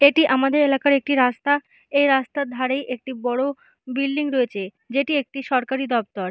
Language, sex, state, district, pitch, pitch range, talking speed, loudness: Bengali, female, West Bengal, Malda, 270 Hz, 250-280 Hz, 150 wpm, -21 LUFS